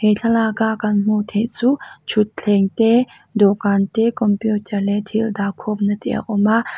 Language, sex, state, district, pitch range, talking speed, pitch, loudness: Mizo, female, Mizoram, Aizawl, 205-225 Hz, 160 wpm, 215 Hz, -18 LUFS